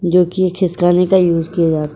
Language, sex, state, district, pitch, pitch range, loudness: Hindi, female, Uttar Pradesh, Etah, 175 Hz, 170-185 Hz, -14 LUFS